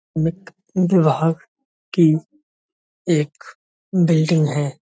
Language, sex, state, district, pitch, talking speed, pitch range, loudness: Hindi, male, Uttar Pradesh, Budaun, 165 Hz, 60 wpm, 155-185 Hz, -19 LUFS